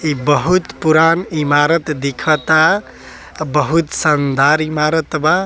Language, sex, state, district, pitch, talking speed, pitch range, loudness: Bhojpuri, male, Bihar, East Champaran, 155 Hz, 110 wpm, 145-160 Hz, -14 LUFS